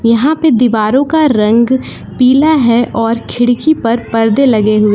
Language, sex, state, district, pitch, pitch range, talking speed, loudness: Hindi, female, Jharkhand, Palamu, 240 Hz, 225-275 Hz, 160 wpm, -11 LUFS